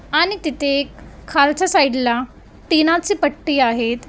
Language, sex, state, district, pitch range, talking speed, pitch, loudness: Marathi, female, Maharashtra, Gondia, 260-325 Hz, 145 wpm, 285 Hz, -17 LUFS